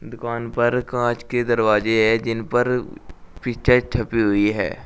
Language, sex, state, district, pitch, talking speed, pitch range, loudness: Hindi, male, Uttar Pradesh, Shamli, 120 Hz, 150 wpm, 115-120 Hz, -20 LUFS